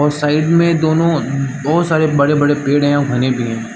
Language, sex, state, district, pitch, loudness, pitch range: Hindi, male, Chhattisgarh, Bastar, 145 Hz, -14 LUFS, 140-160 Hz